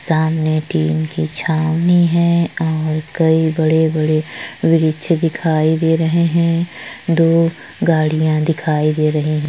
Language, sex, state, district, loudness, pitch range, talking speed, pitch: Hindi, female, Chhattisgarh, Korba, -16 LUFS, 155-165 Hz, 120 wpm, 160 Hz